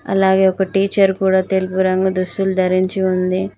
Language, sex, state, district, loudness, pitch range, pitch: Telugu, female, Telangana, Mahabubabad, -16 LUFS, 185-190 Hz, 190 Hz